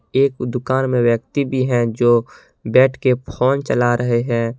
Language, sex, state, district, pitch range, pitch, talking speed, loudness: Hindi, male, Jharkhand, Deoghar, 120-130 Hz, 125 Hz, 155 wpm, -17 LUFS